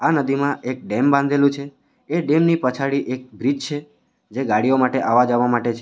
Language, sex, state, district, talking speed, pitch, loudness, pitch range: Gujarati, male, Gujarat, Valsad, 185 wpm, 135 Hz, -20 LUFS, 125-145 Hz